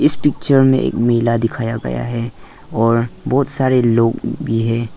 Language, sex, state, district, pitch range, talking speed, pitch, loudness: Hindi, male, Arunachal Pradesh, Lower Dibang Valley, 115-135 Hz, 155 wpm, 120 Hz, -16 LUFS